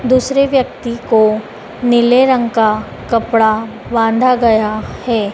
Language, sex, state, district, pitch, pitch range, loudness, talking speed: Hindi, female, Madhya Pradesh, Dhar, 230 Hz, 220-255 Hz, -14 LUFS, 110 wpm